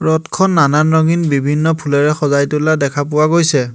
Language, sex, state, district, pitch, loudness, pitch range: Assamese, male, Assam, Hailakandi, 150 Hz, -14 LUFS, 145-160 Hz